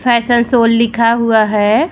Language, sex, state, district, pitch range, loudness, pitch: Hindi, female, Bihar, Vaishali, 225-240 Hz, -12 LUFS, 230 Hz